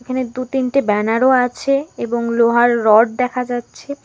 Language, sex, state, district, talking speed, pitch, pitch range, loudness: Bengali, female, West Bengal, Alipurduar, 150 wpm, 250 Hz, 235-260 Hz, -16 LUFS